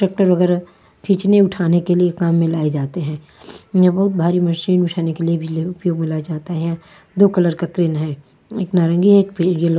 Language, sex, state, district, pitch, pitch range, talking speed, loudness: Hindi, female, Punjab, Fazilka, 175 Hz, 165-180 Hz, 220 wpm, -17 LUFS